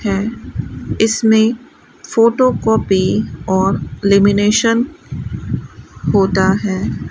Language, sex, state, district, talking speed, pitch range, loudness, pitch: Hindi, female, Rajasthan, Bikaner, 60 wpm, 190-230 Hz, -15 LUFS, 205 Hz